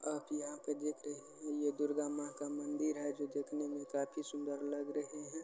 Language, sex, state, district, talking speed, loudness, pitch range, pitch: Maithili, male, Bihar, Supaul, 210 wpm, -41 LUFS, 145-150 Hz, 145 Hz